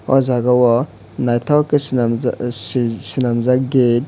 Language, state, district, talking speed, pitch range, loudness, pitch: Kokborok, Tripura, West Tripura, 90 wpm, 120-130 Hz, -17 LUFS, 125 Hz